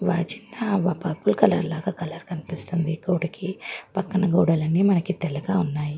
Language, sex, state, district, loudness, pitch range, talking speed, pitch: Telugu, female, Andhra Pradesh, Guntur, -24 LUFS, 165-190 Hz, 140 wpm, 175 Hz